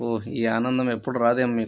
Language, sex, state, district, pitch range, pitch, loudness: Telugu, male, Andhra Pradesh, Chittoor, 115-125 Hz, 120 Hz, -24 LUFS